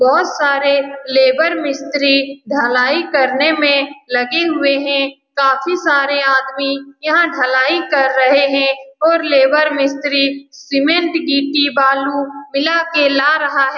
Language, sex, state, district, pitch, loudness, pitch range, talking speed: Hindi, female, Bihar, Saran, 280 Hz, -14 LUFS, 275-295 Hz, 125 wpm